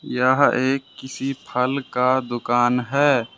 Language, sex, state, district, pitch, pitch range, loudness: Hindi, male, Jharkhand, Ranchi, 130 Hz, 125-135 Hz, -21 LUFS